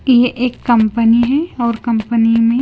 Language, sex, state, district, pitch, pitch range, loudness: Hindi, female, Punjab, Kapurthala, 235 Hz, 230-250 Hz, -14 LUFS